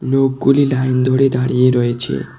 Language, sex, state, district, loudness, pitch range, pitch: Bengali, male, West Bengal, Cooch Behar, -15 LUFS, 125-135 Hz, 130 Hz